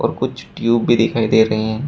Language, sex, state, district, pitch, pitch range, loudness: Hindi, male, Uttar Pradesh, Shamli, 115 Hz, 110-115 Hz, -17 LUFS